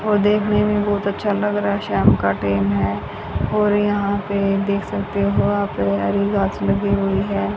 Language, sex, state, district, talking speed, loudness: Hindi, female, Haryana, Rohtak, 190 wpm, -19 LUFS